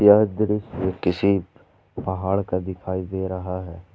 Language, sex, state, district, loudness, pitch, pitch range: Hindi, male, Jharkhand, Ranchi, -24 LUFS, 95 Hz, 90-100 Hz